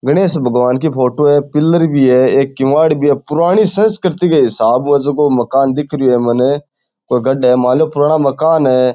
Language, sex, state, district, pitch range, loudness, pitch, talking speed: Rajasthani, male, Rajasthan, Churu, 130-155 Hz, -12 LUFS, 145 Hz, 200 wpm